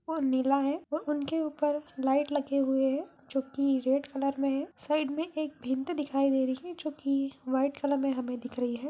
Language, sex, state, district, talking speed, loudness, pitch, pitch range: Hindi, female, Bihar, Jamui, 210 wpm, -30 LUFS, 275 Hz, 270-295 Hz